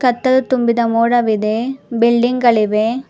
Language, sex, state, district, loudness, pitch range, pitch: Kannada, female, Karnataka, Bangalore, -15 LUFS, 230-250 Hz, 235 Hz